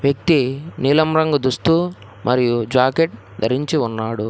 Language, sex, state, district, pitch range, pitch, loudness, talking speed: Telugu, male, Telangana, Hyderabad, 115-155 Hz, 130 Hz, -18 LUFS, 100 wpm